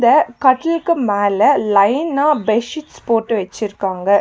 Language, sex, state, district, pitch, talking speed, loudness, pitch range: Tamil, female, Tamil Nadu, Nilgiris, 225 Hz, 115 wpm, -16 LUFS, 205-290 Hz